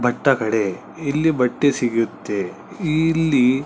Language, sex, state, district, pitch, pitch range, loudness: Kannada, male, Karnataka, Chamarajanagar, 135 Hz, 125-155 Hz, -20 LUFS